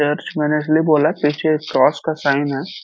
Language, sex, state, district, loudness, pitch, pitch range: Hindi, male, Uttar Pradesh, Deoria, -17 LUFS, 150 Hz, 145-155 Hz